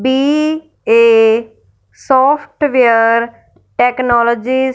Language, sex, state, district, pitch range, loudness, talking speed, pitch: Hindi, female, Punjab, Fazilka, 225-265 Hz, -12 LUFS, 50 wpm, 235 Hz